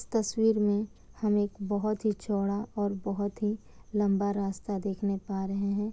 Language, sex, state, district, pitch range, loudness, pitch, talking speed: Hindi, female, Bihar, Kishanganj, 200-210 Hz, -30 LUFS, 205 Hz, 170 wpm